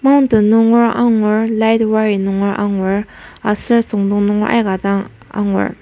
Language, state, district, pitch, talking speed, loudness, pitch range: Ao, Nagaland, Kohima, 215 Hz, 135 wpm, -14 LUFS, 200-225 Hz